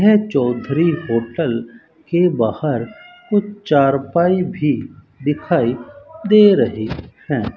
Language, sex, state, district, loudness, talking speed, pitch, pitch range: Hindi, male, Rajasthan, Bikaner, -17 LUFS, 95 wpm, 160 Hz, 125-200 Hz